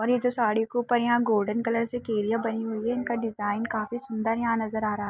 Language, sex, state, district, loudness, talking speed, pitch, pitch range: Hindi, female, Jharkhand, Sahebganj, -27 LUFS, 260 wpm, 225 Hz, 220-240 Hz